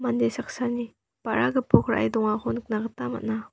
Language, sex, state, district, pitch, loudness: Garo, female, Meghalaya, West Garo Hills, 215 Hz, -26 LUFS